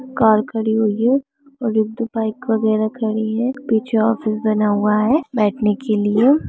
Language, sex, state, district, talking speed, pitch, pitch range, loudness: Hindi, female, Chhattisgarh, Raigarh, 175 wpm, 220 Hz, 215-240 Hz, -18 LUFS